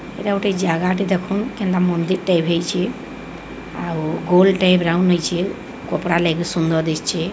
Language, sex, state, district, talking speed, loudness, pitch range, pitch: Odia, female, Odisha, Sambalpur, 155 wpm, -19 LUFS, 170-190 Hz, 180 Hz